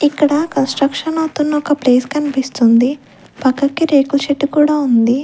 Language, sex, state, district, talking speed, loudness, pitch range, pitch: Telugu, female, Andhra Pradesh, Sri Satya Sai, 125 wpm, -15 LUFS, 265-295 Hz, 285 Hz